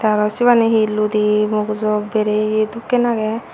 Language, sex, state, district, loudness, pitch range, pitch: Chakma, female, Tripura, Unakoti, -17 LUFS, 210-225 Hz, 215 Hz